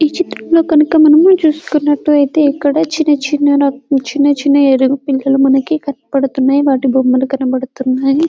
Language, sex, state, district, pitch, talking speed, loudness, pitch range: Telugu, female, Telangana, Karimnagar, 285 Hz, 130 wpm, -12 LUFS, 270-305 Hz